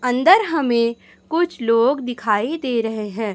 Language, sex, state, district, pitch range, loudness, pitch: Hindi, female, Chhattisgarh, Raipur, 225-295 Hz, -19 LUFS, 240 Hz